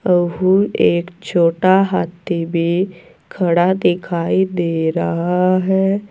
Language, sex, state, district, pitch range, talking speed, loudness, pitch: Hindi, female, Uttar Pradesh, Saharanpur, 170-190 Hz, 90 wpm, -17 LUFS, 180 Hz